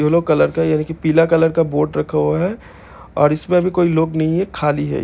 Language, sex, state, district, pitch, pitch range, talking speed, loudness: Hindi, male, Chhattisgarh, Bilaspur, 160 Hz, 150-165 Hz, 260 wpm, -17 LUFS